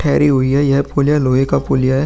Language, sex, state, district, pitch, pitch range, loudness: Hindi, male, Bihar, Vaishali, 140 Hz, 130-145 Hz, -14 LUFS